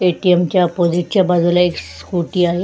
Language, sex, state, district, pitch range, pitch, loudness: Marathi, female, Maharashtra, Sindhudurg, 175-180 Hz, 175 Hz, -16 LUFS